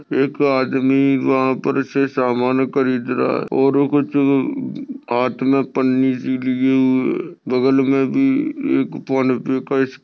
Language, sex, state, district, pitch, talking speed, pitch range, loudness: Hindi, male, Maharashtra, Sindhudurg, 135 Hz, 145 wpm, 130-140 Hz, -18 LUFS